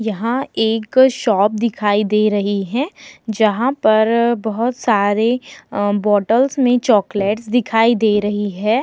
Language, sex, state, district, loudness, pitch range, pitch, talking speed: Hindi, female, Uttar Pradesh, Muzaffarnagar, -16 LUFS, 205-240 Hz, 220 Hz, 120 wpm